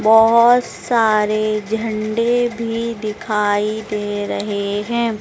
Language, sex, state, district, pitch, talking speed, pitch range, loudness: Hindi, female, Madhya Pradesh, Dhar, 215 Hz, 90 wpm, 210-230 Hz, -18 LUFS